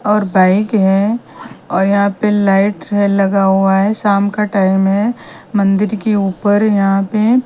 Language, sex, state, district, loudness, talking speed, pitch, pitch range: Hindi, female, Punjab, Kapurthala, -13 LUFS, 160 wpm, 200 Hz, 195-210 Hz